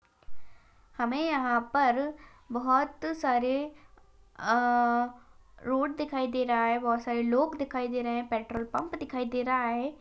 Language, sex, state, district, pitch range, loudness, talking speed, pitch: Hindi, female, Maharashtra, Nagpur, 240-280 Hz, -29 LUFS, 145 wpm, 250 Hz